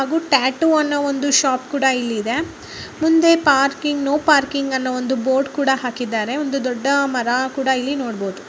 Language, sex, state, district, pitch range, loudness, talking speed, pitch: Kannada, female, Karnataka, Mysore, 255-290 Hz, -18 LUFS, 170 wpm, 275 Hz